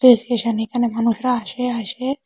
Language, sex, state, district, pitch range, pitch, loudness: Bengali, female, Tripura, West Tripura, 230-250 Hz, 240 Hz, -20 LUFS